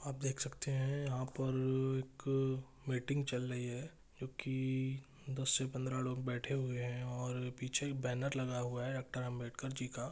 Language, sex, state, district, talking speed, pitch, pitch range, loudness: Hindi, male, Jharkhand, Jamtara, 185 wpm, 130 Hz, 125-135 Hz, -39 LUFS